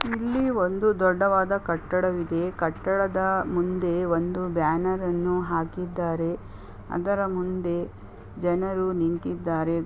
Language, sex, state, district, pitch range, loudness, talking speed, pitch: Kannada, female, Karnataka, Belgaum, 165-185 Hz, -26 LUFS, 90 wpm, 180 Hz